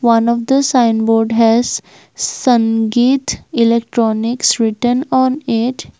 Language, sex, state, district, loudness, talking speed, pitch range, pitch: English, female, Assam, Kamrup Metropolitan, -14 LUFS, 110 wpm, 225-255 Hz, 235 Hz